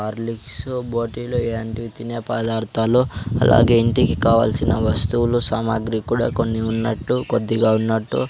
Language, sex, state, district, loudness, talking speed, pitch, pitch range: Telugu, male, Andhra Pradesh, Sri Satya Sai, -20 LUFS, 110 wpm, 115 Hz, 110-120 Hz